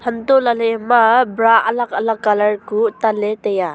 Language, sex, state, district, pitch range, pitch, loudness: Wancho, female, Arunachal Pradesh, Longding, 215-240 Hz, 225 Hz, -15 LUFS